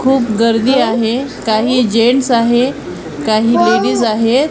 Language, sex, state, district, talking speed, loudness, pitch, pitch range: Marathi, female, Maharashtra, Washim, 120 wpm, -13 LUFS, 235 Hz, 225-255 Hz